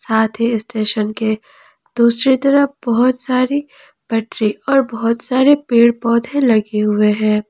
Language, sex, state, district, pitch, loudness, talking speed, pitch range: Hindi, female, Jharkhand, Palamu, 235 Hz, -15 LUFS, 135 wpm, 220-265 Hz